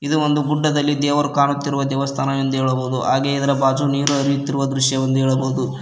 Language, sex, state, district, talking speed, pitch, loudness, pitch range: Kannada, male, Karnataka, Koppal, 145 wpm, 140 Hz, -19 LUFS, 135-145 Hz